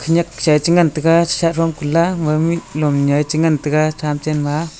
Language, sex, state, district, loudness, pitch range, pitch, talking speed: Wancho, male, Arunachal Pradesh, Longding, -16 LUFS, 150-165 Hz, 155 Hz, 175 wpm